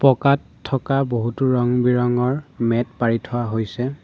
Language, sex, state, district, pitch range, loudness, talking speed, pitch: Assamese, male, Assam, Sonitpur, 120-135 Hz, -20 LUFS, 135 wpm, 125 Hz